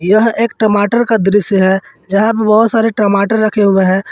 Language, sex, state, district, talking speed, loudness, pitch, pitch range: Hindi, male, Jharkhand, Ranchi, 205 wpm, -12 LUFS, 210 Hz, 195-225 Hz